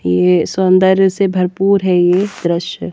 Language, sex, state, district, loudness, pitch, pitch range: Hindi, female, Haryana, Jhajjar, -13 LUFS, 185 Hz, 170-190 Hz